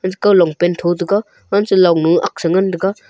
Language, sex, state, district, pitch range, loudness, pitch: Wancho, male, Arunachal Pradesh, Longding, 175-195 Hz, -15 LUFS, 185 Hz